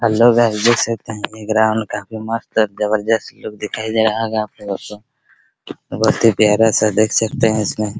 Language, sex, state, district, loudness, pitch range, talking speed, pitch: Hindi, male, Bihar, Araria, -17 LUFS, 110-115 Hz, 210 wpm, 110 Hz